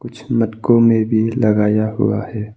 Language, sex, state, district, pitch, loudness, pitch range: Hindi, male, Arunachal Pradesh, Papum Pare, 110 Hz, -16 LUFS, 105-115 Hz